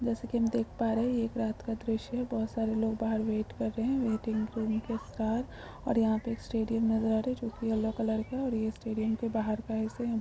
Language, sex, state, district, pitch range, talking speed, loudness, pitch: Hindi, female, Andhra Pradesh, Visakhapatnam, 220-230 Hz, 235 wpm, -32 LUFS, 225 Hz